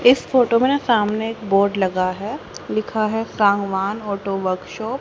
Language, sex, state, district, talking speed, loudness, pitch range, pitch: Hindi, female, Haryana, Charkhi Dadri, 180 wpm, -20 LUFS, 195-225 Hz, 215 Hz